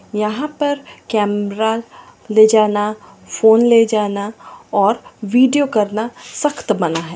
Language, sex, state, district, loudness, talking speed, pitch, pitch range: Hindi, female, Chhattisgarh, Bilaspur, -16 LUFS, 115 wpm, 220 Hz, 210-235 Hz